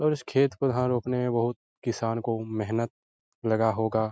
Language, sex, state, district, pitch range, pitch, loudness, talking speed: Hindi, male, Bihar, Lakhisarai, 110-125 Hz, 115 Hz, -28 LUFS, 190 wpm